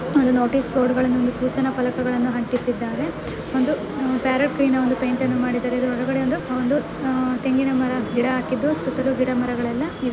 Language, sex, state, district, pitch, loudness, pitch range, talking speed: Kannada, female, Karnataka, Mysore, 255 Hz, -22 LUFS, 250-265 Hz, 150 wpm